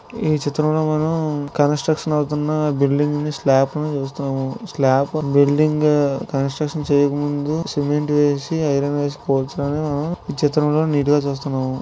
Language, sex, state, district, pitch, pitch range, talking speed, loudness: Telugu, male, Andhra Pradesh, Visakhapatnam, 145 Hz, 140-155 Hz, 65 wpm, -19 LUFS